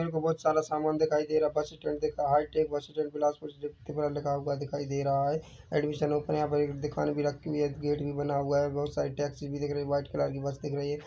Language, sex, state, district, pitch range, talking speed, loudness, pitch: Hindi, male, Chhattisgarh, Bilaspur, 145-150 Hz, 290 wpm, -31 LUFS, 145 Hz